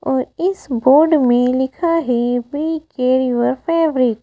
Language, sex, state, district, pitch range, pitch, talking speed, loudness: Hindi, female, Madhya Pradesh, Bhopal, 245-315 Hz, 260 Hz, 155 wpm, -16 LUFS